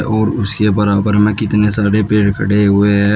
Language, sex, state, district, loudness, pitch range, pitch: Hindi, male, Uttar Pradesh, Shamli, -13 LUFS, 100-105 Hz, 105 Hz